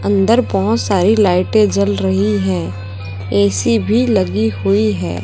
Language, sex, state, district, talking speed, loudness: Hindi, male, Chhattisgarh, Raipur, 135 wpm, -15 LUFS